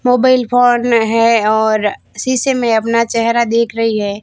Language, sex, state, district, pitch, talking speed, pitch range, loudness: Hindi, female, Rajasthan, Barmer, 230 Hz, 155 wpm, 225-245 Hz, -13 LUFS